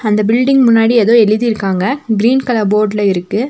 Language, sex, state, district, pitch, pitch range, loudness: Tamil, female, Tamil Nadu, Nilgiris, 225 Hz, 210-235 Hz, -12 LUFS